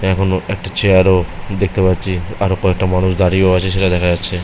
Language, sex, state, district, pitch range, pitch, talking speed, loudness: Bengali, male, West Bengal, Malda, 90-95 Hz, 95 Hz, 190 wpm, -15 LUFS